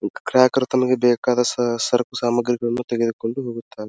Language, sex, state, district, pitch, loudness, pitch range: Kannada, male, Karnataka, Dharwad, 120 Hz, -20 LUFS, 120-125 Hz